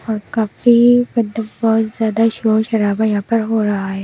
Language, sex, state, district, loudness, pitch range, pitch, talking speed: Hindi, female, Delhi, New Delhi, -16 LUFS, 215-230 Hz, 220 Hz, 180 wpm